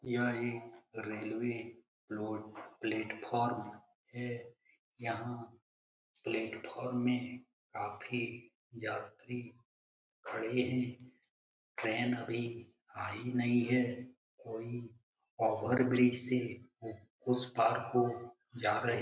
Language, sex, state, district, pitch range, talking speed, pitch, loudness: Hindi, male, Bihar, Jamui, 115-125 Hz, 85 wpm, 120 Hz, -37 LUFS